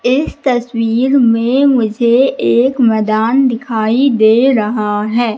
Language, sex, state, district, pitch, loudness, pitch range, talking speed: Hindi, female, Madhya Pradesh, Katni, 235 Hz, -12 LUFS, 220-255 Hz, 110 wpm